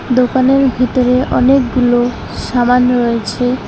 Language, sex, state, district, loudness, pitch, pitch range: Bengali, female, West Bengal, Alipurduar, -13 LUFS, 250 Hz, 245-255 Hz